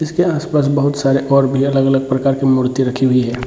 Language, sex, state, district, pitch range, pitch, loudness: Hindi, male, Bihar, Purnia, 130-140 Hz, 135 Hz, -15 LUFS